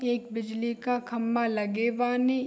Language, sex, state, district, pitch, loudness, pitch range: Hindi, female, Bihar, Saharsa, 235 Hz, -29 LUFS, 230-245 Hz